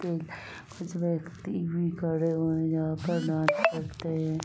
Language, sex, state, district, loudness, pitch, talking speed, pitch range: Hindi, female, Uttar Pradesh, Muzaffarnagar, -29 LUFS, 165 Hz, 150 wpm, 160-170 Hz